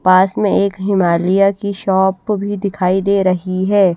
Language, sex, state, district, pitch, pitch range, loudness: Hindi, female, Haryana, Rohtak, 195 Hz, 185-200 Hz, -15 LUFS